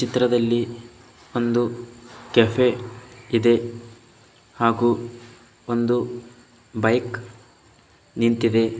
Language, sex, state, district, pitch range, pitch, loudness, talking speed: Kannada, male, Karnataka, Bidar, 115-120 Hz, 120 Hz, -22 LUFS, 55 wpm